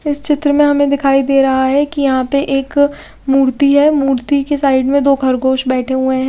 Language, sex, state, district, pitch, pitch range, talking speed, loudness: Hindi, female, Chhattisgarh, Raipur, 275 Hz, 265-285 Hz, 220 wpm, -13 LUFS